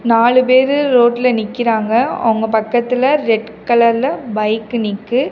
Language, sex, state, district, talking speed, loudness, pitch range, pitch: Tamil, female, Tamil Nadu, Kanyakumari, 115 wpm, -14 LUFS, 220-250 Hz, 235 Hz